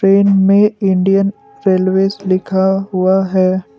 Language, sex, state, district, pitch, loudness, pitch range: Hindi, male, Assam, Kamrup Metropolitan, 195 Hz, -13 LUFS, 190-195 Hz